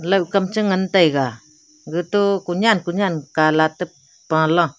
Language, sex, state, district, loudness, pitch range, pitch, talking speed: Wancho, female, Arunachal Pradesh, Longding, -19 LUFS, 155-195 Hz, 175 Hz, 115 wpm